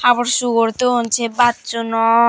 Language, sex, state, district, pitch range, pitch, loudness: Chakma, female, Tripura, Dhalai, 230-245 Hz, 235 Hz, -16 LUFS